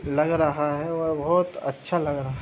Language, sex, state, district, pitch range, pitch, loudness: Hindi, male, Uttar Pradesh, Hamirpur, 145-165 Hz, 150 Hz, -25 LUFS